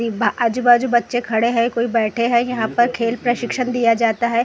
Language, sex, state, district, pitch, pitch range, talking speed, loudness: Hindi, female, Maharashtra, Gondia, 235 Hz, 230-240 Hz, 230 wpm, -18 LUFS